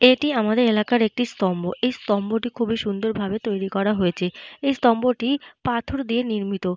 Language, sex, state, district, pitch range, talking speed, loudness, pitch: Bengali, female, Jharkhand, Jamtara, 200-245 Hz, 160 wpm, -22 LUFS, 225 Hz